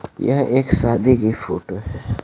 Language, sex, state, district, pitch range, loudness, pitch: Hindi, male, Bihar, Kaimur, 110-130 Hz, -18 LUFS, 115 Hz